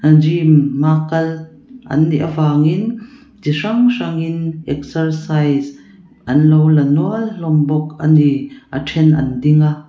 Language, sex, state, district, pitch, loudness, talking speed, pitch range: Mizo, female, Mizoram, Aizawl, 155 Hz, -15 LUFS, 140 wpm, 150-165 Hz